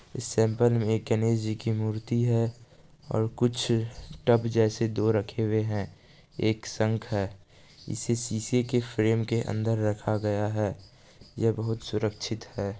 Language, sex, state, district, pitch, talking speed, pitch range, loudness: Maithili, male, Bihar, Supaul, 110 Hz, 140 wpm, 110-120 Hz, -28 LUFS